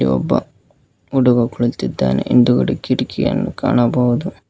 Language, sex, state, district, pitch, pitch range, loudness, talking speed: Kannada, male, Karnataka, Koppal, 120 Hz, 120-125 Hz, -17 LUFS, 80 wpm